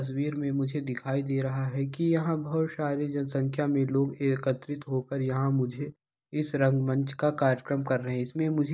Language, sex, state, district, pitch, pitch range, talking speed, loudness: Hindi, male, Bihar, East Champaran, 140 Hz, 135-145 Hz, 190 wpm, -29 LUFS